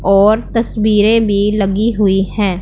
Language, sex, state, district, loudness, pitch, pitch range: Hindi, male, Punjab, Pathankot, -13 LUFS, 205 Hz, 195-220 Hz